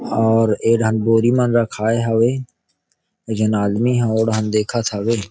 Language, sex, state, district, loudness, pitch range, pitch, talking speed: Chhattisgarhi, male, Chhattisgarh, Rajnandgaon, -18 LUFS, 110-115 Hz, 115 Hz, 170 wpm